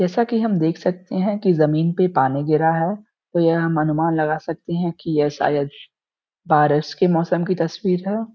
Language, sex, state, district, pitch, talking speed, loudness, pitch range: Hindi, male, Uttar Pradesh, Gorakhpur, 165 Hz, 200 wpm, -20 LUFS, 155-185 Hz